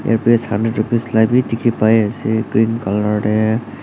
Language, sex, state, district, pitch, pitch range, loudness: Nagamese, male, Nagaland, Dimapur, 110 Hz, 110-115 Hz, -16 LUFS